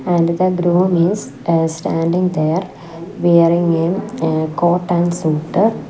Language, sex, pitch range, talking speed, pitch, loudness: English, female, 165-180 Hz, 130 wpm, 170 Hz, -16 LUFS